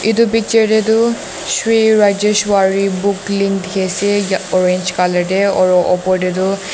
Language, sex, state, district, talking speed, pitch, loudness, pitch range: Nagamese, female, Nagaland, Dimapur, 150 wpm, 195 Hz, -14 LUFS, 185-215 Hz